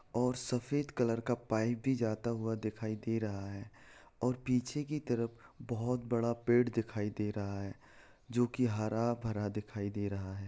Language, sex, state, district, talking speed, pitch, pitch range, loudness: Hindi, male, Bihar, Saran, 170 wpm, 115 Hz, 105-125 Hz, -36 LUFS